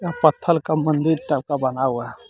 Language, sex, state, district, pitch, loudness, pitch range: Hindi, male, Jharkhand, Deoghar, 155 Hz, -21 LUFS, 135-160 Hz